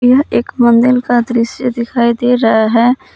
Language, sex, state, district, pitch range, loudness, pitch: Hindi, female, Jharkhand, Palamu, 235-250 Hz, -12 LUFS, 240 Hz